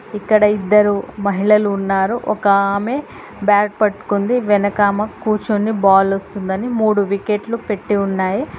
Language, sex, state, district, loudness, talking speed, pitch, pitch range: Telugu, female, Telangana, Hyderabad, -16 LUFS, 110 wpm, 205 Hz, 200-215 Hz